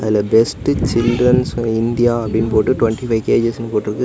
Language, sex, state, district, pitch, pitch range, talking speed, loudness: Tamil, male, Tamil Nadu, Namakkal, 115 Hz, 110-120 Hz, 190 wpm, -16 LUFS